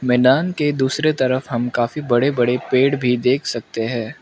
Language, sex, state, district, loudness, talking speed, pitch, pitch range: Hindi, male, Mizoram, Aizawl, -18 LUFS, 185 wpm, 130 Hz, 120-140 Hz